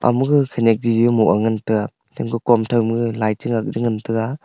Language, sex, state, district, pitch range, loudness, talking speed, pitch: Wancho, male, Arunachal Pradesh, Longding, 110-120 Hz, -18 LUFS, 230 wpm, 115 Hz